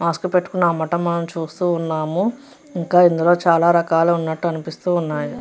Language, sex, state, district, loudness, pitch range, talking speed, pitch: Telugu, female, Andhra Pradesh, Chittoor, -19 LUFS, 165-180 Hz, 135 wpm, 170 Hz